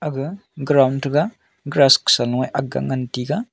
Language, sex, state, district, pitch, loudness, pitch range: Wancho, male, Arunachal Pradesh, Longding, 140 Hz, -18 LUFS, 130-150 Hz